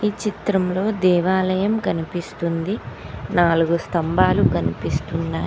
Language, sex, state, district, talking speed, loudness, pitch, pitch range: Telugu, female, Telangana, Mahabubabad, 65 wpm, -21 LUFS, 180 Hz, 165-195 Hz